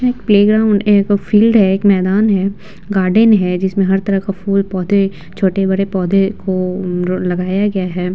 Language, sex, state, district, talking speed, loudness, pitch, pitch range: Hindi, female, Bihar, Vaishali, 200 wpm, -14 LUFS, 195 Hz, 185-205 Hz